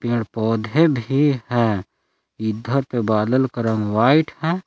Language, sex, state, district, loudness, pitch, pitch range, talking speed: Hindi, male, Jharkhand, Palamu, -20 LUFS, 120 Hz, 110-140 Hz, 140 wpm